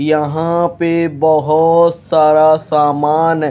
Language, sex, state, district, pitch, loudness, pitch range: Hindi, male, Haryana, Rohtak, 155 Hz, -13 LUFS, 155-165 Hz